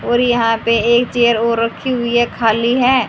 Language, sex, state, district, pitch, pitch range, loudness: Hindi, female, Haryana, Charkhi Dadri, 235 Hz, 230-245 Hz, -15 LUFS